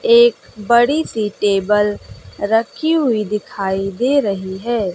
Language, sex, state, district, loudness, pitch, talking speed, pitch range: Hindi, female, Bihar, West Champaran, -17 LUFS, 215 Hz, 120 wpm, 200-250 Hz